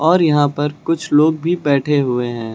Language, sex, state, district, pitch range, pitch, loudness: Hindi, male, Uttar Pradesh, Lucknow, 140-160 Hz, 150 Hz, -16 LUFS